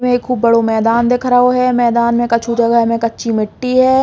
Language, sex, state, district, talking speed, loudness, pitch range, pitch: Bundeli, female, Uttar Pradesh, Hamirpur, 210 wpm, -13 LUFS, 230-250 Hz, 235 Hz